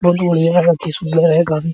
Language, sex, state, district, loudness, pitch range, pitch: Hindi, male, Bihar, Araria, -14 LUFS, 160-175 Hz, 165 Hz